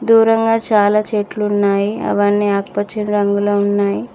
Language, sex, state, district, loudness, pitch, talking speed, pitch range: Telugu, female, Telangana, Mahabubabad, -15 LUFS, 205 Hz, 100 wpm, 205-215 Hz